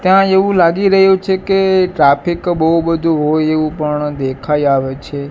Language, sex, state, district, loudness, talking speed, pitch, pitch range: Gujarati, male, Gujarat, Gandhinagar, -13 LUFS, 170 wpm, 165 Hz, 150-190 Hz